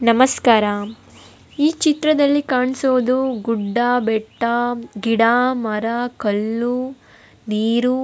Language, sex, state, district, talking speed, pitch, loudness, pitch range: Kannada, female, Karnataka, Bellary, 80 wpm, 240 Hz, -18 LUFS, 225-255 Hz